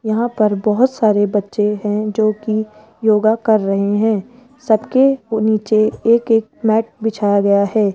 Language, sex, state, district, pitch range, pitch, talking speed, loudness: Hindi, female, Rajasthan, Jaipur, 210-225 Hz, 215 Hz, 150 wpm, -16 LUFS